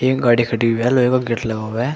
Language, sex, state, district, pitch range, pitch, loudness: Hindi, male, Uttar Pradesh, Shamli, 115-125 Hz, 120 Hz, -17 LUFS